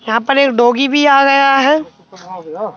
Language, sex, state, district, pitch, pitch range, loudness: Hindi, male, Madhya Pradesh, Bhopal, 265 Hz, 215-275 Hz, -11 LUFS